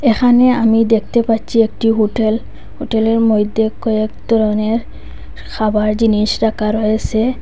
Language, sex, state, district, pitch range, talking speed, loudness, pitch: Bengali, female, Assam, Hailakandi, 215-230 Hz, 115 wpm, -15 LUFS, 225 Hz